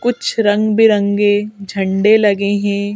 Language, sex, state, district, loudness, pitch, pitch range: Hindi, female, Madhya Pradesh, Bhopal, -14 LUFS, 205 Hz, 200-215 Hz